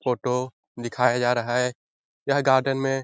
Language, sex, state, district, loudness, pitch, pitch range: Hindi, male, Bihar, Jahanabad, -24 LUFS, 125 Hz, 120-130 Hz